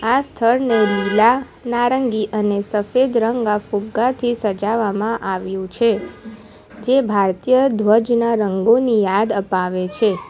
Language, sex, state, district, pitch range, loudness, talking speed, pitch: Gujarati, female, Gujarat, Valsad, 205-240 Hz, -18 LUFS, 105 wpm, 220 Hz